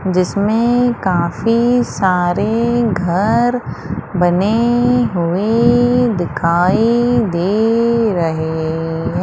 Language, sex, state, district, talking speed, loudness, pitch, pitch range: Hindi, female, Madhya Pradesh, Umaria, 60 wpm, -15 LUFS, 210 Hz, 175-235 Hz